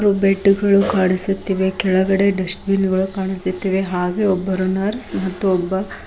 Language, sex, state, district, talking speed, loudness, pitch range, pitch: Kannada, female, Karnataka, Koppal, 130 wpm, -17 LUFS, 185-195 Hz, 190 Hz